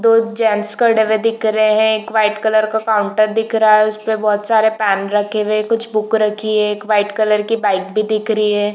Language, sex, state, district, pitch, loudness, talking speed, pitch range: Hindi, female, Chhattisgarh, Bilaspur, 215 Hz, -15 LUFS, 245 wpm, 210-220 Hz